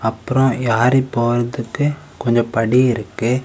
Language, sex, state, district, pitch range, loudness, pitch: Tamil, male, Tamil Nadu, Kanyakumari, 115-130 Hz, -17 LUFS, 120 Hz